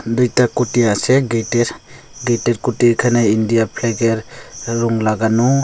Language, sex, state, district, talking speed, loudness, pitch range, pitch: Bengali, male, Tripura, West Tripura, 115 wpm, -16 LUFS, 115-125 Hz, 120 Hz